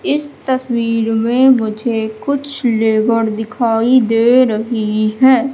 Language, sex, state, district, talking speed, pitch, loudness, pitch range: Hindi, female, Madhya Pradesh, Katni, 110 wpm, 230 Hz, -14 LUFS, 225-260 Hz